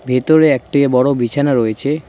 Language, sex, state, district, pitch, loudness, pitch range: Bengali, male, West Bengal, Cooch Behar, 140 Hz, -14 LUFS, 125-145 Hz